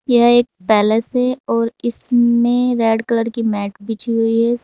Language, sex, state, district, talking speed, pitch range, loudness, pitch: Hindi, female, Uttar Pradesh, Saharanpur, 170 wpm, 225-240 Hz, -16 LUFS, 230 Hz